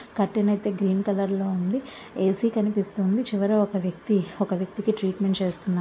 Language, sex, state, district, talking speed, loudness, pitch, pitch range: Telugu, female, Andhra Pradesh, Visakhapatnam, 135 wpm, -25 LUFS, 200 Hz, 190-210 Hz